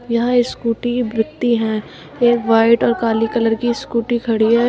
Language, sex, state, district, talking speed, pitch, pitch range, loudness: Hindi, female, Uttar Pradesh, Shamli, 165 wpm, 235 Hz, 225-240 Hz, -17 LUFS